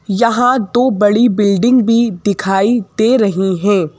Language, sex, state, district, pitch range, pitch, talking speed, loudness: Hindi, female, Madhya Pradesh, Bhopal, 195-240 Hz, 215 Hz, 135 wpm, -13 LUFS